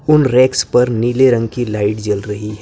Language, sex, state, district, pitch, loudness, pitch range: Hindi, male, Maharashtra, Gondia, 120 Hz, -14 LUFS, 105-130 Hz